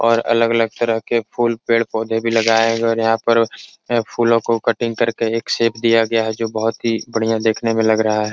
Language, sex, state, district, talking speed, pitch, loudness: Hindi, male, Uttar Pradesh, Etah, 225 wpm, 115 Hz, -17 LUFS